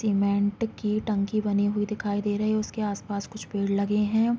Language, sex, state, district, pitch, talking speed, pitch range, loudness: Hindi, female, Uttarakhand, Tehri Garhwal, 210 Hz, 190 wpm, 200-215 Hz, -27 LUFS